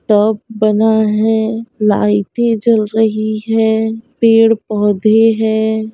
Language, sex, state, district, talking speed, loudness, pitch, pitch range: Hindi, female, Uttar Pradesh, Budaun, 90 wpm, -13 LUFS, 220 Hz, 215-225 Hz